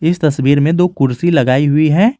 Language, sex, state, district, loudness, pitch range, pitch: Hindi, male, Jharkhand, Garhwa, -13 LUFS, 140-170 Hz, 155 Hz